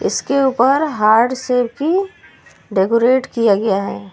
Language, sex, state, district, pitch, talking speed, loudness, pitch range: Hindi, female, Uttar Pradesh, Lucknow, 245 Hz, 130 wpm, -16 LUFS, 215-270 Hz